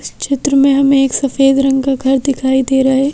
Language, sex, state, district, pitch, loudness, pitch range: Hindi, female, Madhya Pradesh, Bhopal, 270 Hz, -13 LUFS, 265-275 Hz